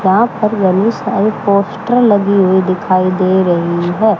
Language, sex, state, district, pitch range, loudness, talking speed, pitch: Hindi, male, Haryana, Charkhi Dadri, 185-215 Hz, -13 LUFS, 155 wpm, 200 Hz